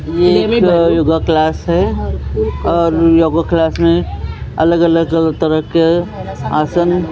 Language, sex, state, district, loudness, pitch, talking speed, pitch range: Hindi, male, Maharashtra, Mumbai Suburban, -13 LUFS, 165 Hz, 120 wpm, 145-170 Hz